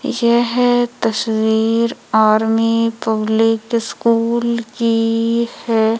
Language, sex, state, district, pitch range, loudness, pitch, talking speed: Hindi, female, Madhya Pradesh, Umaria, 225-235 Hz, -16 LUFS, 230 Hz, 70 wpm